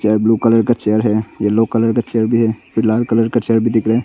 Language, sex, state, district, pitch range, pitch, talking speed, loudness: Hindi, male, Arunachal Pradesh, Longding, 110-115 Hz, 115 Hz, 265 wpm, -15 LUFS